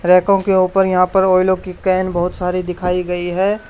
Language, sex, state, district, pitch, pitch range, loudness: Hindi, male, Haryana, Charkhi Dadri, 185 Hz, 180-190 Hz, -16 LUFS